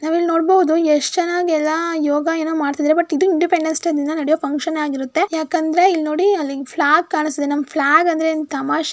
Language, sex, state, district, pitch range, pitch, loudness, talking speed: Kannada, female, Karnataka, Mysore, 300-340 Hz, 315 Hz, -17 LUFS, 180 wpm